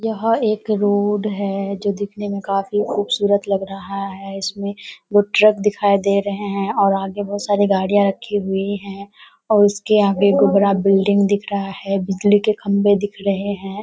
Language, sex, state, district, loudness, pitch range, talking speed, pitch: Hindi, female, Bihar, Kishanganj, -18 LUFS, 195-205 Hz, 175 wpm, 200 Hz